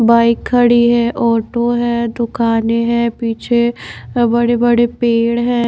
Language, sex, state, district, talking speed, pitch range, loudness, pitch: Hindi, female, Bihar, Katihar, 125 wpm, 235-240 Hz, -14 LUFS, 235 Hz